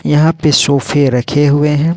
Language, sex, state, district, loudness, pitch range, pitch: Hindi, male, Jharkhand, Ranchi, -11 LUFS, 140-150 Hz, 145 Hz